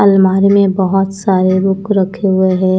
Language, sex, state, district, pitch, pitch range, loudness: Hindi, female, Chandigarh, Chandigarh, 195 Hz, 190-195 Hz, -12 LUFS